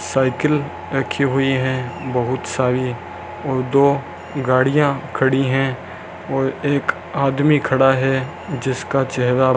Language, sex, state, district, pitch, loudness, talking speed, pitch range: Hindi, male, Rajasthan, Bikaner, 135 Hz, -19 LUFS, 115 wpm, 130-140 Hz